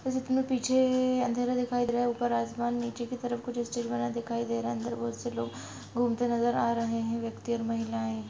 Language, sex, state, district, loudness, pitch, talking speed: Hindi, female, Jharkhand, Sahebganj, -30 LUFS, 235 Hz, 225 wpm